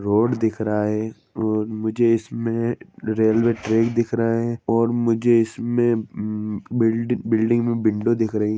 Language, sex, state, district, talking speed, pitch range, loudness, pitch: Hindi, male, Jharkhand, Sahebganj, 160 wpm, 110-115 Hz, -21 LUFS, 115 Hz